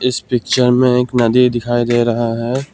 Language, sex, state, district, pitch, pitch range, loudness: Hindi, male, Assam, Kamrup Metropolitan, 125 Hz, 120-125 Hz, -14 LUFS